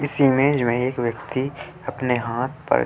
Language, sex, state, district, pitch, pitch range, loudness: Hindi, female, Bihar, Vaishali, 130 Hz, 120-140 Hz, -22 LUFS